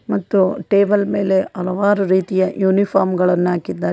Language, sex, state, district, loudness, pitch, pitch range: Kannada, female, Karnataka, Koppal, -17 LUFS, 190 Hz, 185-200 Hz